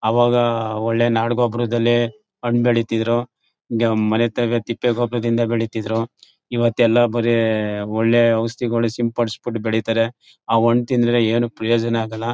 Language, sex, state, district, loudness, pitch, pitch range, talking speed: Kannada, male, Karnataka, Mysore, -19 LUFS, 115 Hz, 115-120 Hz, 115 wpm